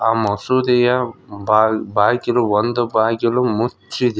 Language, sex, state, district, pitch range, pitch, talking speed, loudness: Kannada, male, Karnataka, Koppal, 110-120 Hz, 115 Hz, 100 wpm, -17 LUFS